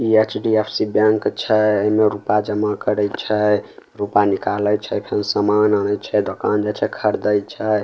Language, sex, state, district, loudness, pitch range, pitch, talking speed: Maithili, male, Bihar, Samastipur, -19 LUFS, 105-110 Hz, 105 Hz, 160 wpm